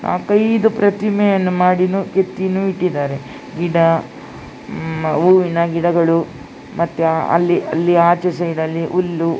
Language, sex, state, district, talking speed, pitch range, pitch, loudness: Kannada, female, Karnataka, Dakshina Kannada, 100 wpm, 165-190 Hz, 175 Hz, -16 LUFS